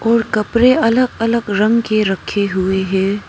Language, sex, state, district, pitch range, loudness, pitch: Hindi, female, Arunachal Pradesh, Papum Pare, 200-235 Hz, -15 LUFS, 215 Hz